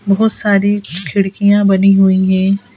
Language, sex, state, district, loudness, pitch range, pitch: Hindi, female, Madhya Pradesh, Bhopal, -12 LUFS, 190-205 Hz, 195 Hz